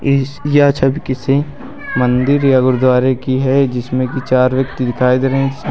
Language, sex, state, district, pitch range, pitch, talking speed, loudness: Hindi, male, Uttar Pradesh, Lucknow, 130-135 Hz, 130 Hz, 170 wpm, -14 LUFS